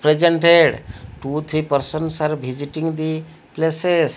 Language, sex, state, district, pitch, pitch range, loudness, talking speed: English, male, Odisha, Malkangiri, 155 Hz, 145-160 Hz, -19 LUFS, 115 wpm